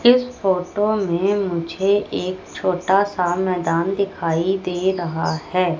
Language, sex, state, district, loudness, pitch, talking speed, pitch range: Hindi, female, Madhya Pradesh, Katni, -20 LUFS, 185 Hz, 125 wpm, 175-200 Hz